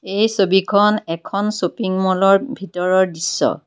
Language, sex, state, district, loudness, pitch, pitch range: Assamese, female, Assam, Kamrup Metropolitan, -17 LUFS, 195 Hz, 185-205 Hz